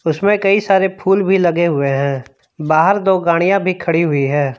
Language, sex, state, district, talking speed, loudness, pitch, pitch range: Hindi, male, Jharkhand, Palamu, 195 wpm, -15 LUFS, 170 Hz, 145-195 Hz